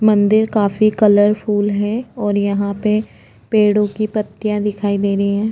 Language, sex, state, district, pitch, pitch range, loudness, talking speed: Hindi, female, Uttarakhand, Tehri Garhwal, 210 Hz, 205-215 Hz, -16 LUFS, 150 wpm